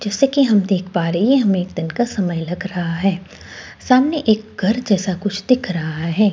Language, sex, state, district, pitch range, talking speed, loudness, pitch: Hindi, female, Delhi, New Delhi, 180-230 Hz, 220 wpm, -18 LUFS, 195 Hz